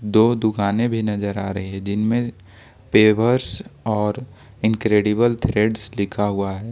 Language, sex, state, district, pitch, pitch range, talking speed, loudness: Hindi, male, Jharkhand, Ranchi, 105 Hz, 100-115 Hz, 135 wpm, -20 LUFS